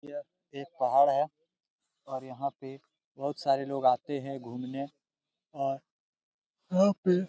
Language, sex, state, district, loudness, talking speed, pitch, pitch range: Hindi, male, Jharkhand, Jamtara, -30 LUFS, 130 wpm, 140 Hz, 135-145 Hz